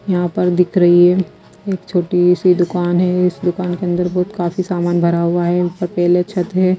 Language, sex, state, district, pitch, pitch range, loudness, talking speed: Hindi, female, Himachal Pradesh, Shimla, 180 Hz, 175-180 Hz, -16 LUFS, 210 wpm